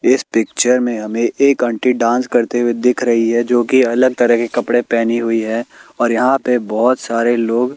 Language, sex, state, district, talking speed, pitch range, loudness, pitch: Hindi, male, Bihar, Kaimur, 210 wpm, 115-125 Hz, -15 LUFS, 120 Hz